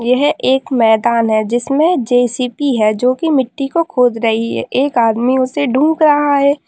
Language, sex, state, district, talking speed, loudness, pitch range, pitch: Hindi, female, Bihar, Lakhisarai, 180 wpm, -14 LUFS, 235-285 Hz, 255 Hz